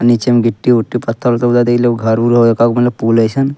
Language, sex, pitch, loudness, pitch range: Angika, male, 120 Hz, -12 LUFS, 115-120 Hz